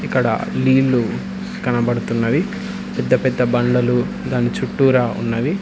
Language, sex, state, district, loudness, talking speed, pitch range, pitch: Telugu, male, Telangana, Hyderabad, -18 LUFS, 95 wpm, 120-155 Hz, 125 Hz